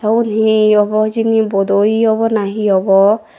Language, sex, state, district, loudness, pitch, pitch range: Chakma, female, Tripura, Dhalai, -13 LUFS, 215 Hz, 205-220 Hz